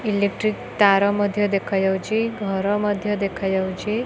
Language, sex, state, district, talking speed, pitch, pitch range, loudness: Odia, female, Odisha, Khordha, 130 wpm, 205 Hz, 195-210 Hz, -21 LUFS